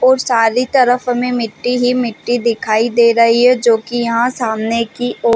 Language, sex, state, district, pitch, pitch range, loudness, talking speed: Hindi, female, Chhattisgarh, Balrampur, 240 Hz, 230-245 Hz, -14 LUFS, 190 wpm